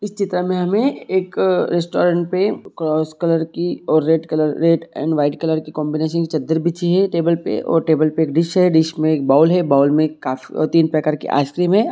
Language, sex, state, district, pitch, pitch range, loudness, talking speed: Hindi, male, Jharkhand, Sahebganj, 165 Hz, 155-175 Hz, -18 LUFS, 210 wpm